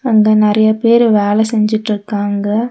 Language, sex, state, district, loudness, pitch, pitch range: Tamil, female, Tamil Nadu, Nilgiris, -13 LUFS, 215 Hz, 210-220 Hz